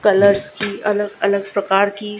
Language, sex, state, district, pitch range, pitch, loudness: Hindi, female, Gujarat, Gandhinagar, 200-205 Hz, 200 Hz, -17 LUFS